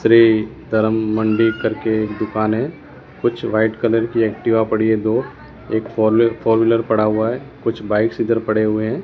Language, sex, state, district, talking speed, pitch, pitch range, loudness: Hindi, male, Gujarat, Gandhinagar, 185 wpm, 110 Hz, 110-115 Hz, -18 LUFS